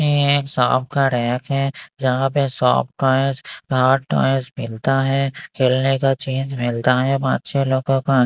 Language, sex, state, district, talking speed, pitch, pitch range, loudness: Hindi, male, Maharashtra, Mumbai Suburban, 160 wpm, 135 Hz, 130-135 Hz, -19 LUFS